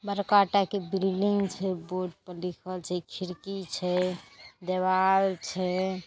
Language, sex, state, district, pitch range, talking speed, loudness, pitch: Maithili, female, Bihar, Saharsa, 180-195 Hz, 130 wpm, -28 LUFS, 185 Hz